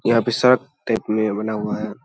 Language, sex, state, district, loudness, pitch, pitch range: Hindi, male, Bihar, Saharsa, -20 LUFS, 115 Hz, 110-125 Hz